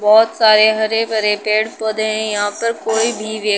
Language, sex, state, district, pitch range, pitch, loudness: Hindi, female, Uttar Pradesh, Budaun, 215-225 Hz, 220 Hz, -15 LUFS